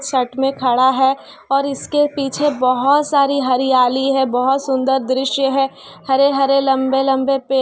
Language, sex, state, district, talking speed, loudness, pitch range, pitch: Hindi, female, Bihar, Kishanganj, 155 wpm, -16 LUFS, 265-275 Hz, 270 Hz